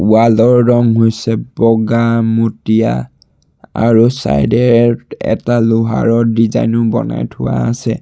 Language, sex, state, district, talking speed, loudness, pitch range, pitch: Assamese, male, Assam, Sonitpur, 110 wpm, -12 LUFS, 110-115 Hz, 115 Hz